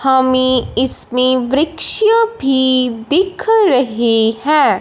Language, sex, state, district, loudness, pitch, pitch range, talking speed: Hindi, male, Punjab, Fazilka, -13 LUFS, 265 Hz, 255-355 Hz, 100 wpm